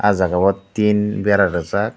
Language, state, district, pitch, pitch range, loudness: Kokborok, Tripura, Dhalai, 100 Hz, 95-105 Hz, -17 LUFS